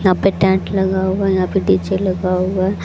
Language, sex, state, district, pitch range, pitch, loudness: Hindi, female, Haryana, Jhajjar, 185-190 Hz, 190 Hz, -17 LUFS